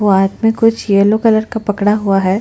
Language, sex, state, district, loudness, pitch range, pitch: Hindi, female, Chhattisgarh, Bastar, -13 LUFS, 200-225 Hz, 210 Hz